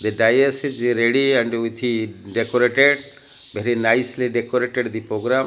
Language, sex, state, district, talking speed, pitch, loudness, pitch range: English, male, Odisha, Malkangiri, 130 wpm, 120 Hz, -19 LUFS, 115-135 Hz